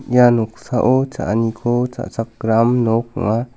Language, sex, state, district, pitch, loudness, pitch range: Garo, male, Meghalaya, South Garo Hills, 115 Hz, -18 LUFS, 115-125 Hz